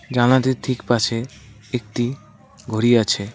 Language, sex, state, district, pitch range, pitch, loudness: Bengali, male, West Bengal, Cooch Behar, 110-125 Hz, 120 Hz, -20 LUFS